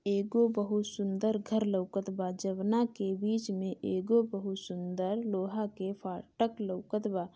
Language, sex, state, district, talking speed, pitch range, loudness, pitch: Bhojpuri, female, Bihar, Gopalganj, 145 wpm, 190-215 Hz, -33 LUFS, 200 Hz